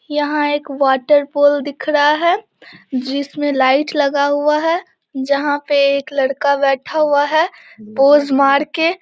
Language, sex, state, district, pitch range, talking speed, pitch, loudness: Hindi, female, Bihar, Samastipur, 275-295 Hz, 145 wpm, 285 Hz, -15 LUFS